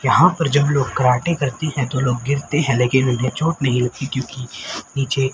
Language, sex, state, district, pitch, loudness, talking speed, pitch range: Hindi, male, Haryana, Rohtak, 135 Hz, -19 LUFS, 200 wpm, 125-145 Hz